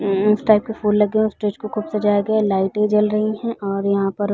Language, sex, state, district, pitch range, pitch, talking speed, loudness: Hindi, female, Chhattisgarh, Balrampur, 205-215 Hz, 210 Hz, 305 wpm, -19 LUFS